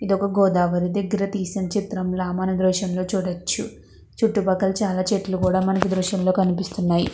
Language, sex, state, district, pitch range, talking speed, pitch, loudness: Telugu, female, Andhra Pradesh, Krishna, 185-195 Hz, 135 wpm, 190 Hz, -22 LUFS